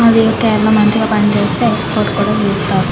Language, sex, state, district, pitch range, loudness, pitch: Telugu, female, Andhra Pradesh, Krishna, 215-225 Hz, -13 LUFS, 220 Hz